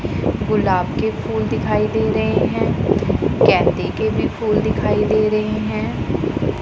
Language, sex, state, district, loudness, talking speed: Hindi, female, Punjab, Pathankot, -18 LUFS, 135 wpm